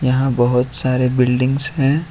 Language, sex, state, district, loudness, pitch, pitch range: Hindi, male, Jharkhand, Ranchi, -16 LUFS, 130 Hz, 125-135 Hz